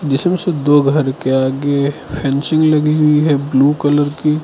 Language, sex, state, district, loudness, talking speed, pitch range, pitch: Hindi, male, Arunachal Pradesh, Lower Dibang Valley, -14 LUFS, 175 wpm, 140-150 Hz, 145 Hz